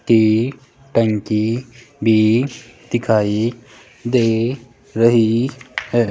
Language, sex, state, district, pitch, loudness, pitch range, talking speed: Hindi, male, Rajasthan, Jaipur, 115 Hz, -18 LUFS, 110-125 Hz, 70 wpm